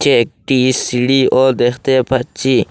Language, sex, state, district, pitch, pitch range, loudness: Bengali, male, Assam, Hailakandi, 130 Hz, 120-130 Hz, -14 LUFS